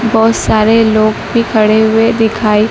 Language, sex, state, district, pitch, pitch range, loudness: Hindi, female, Madhya Pradesh, Dhar, 220 Hz, 215-225 Hz, -10 LUFS